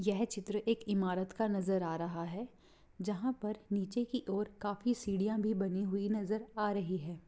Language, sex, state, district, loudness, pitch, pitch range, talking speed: Hindi, female, Bihar, Begusarai, -36 LUFS, 205 Hz, 195-215 Hz, 190 wpm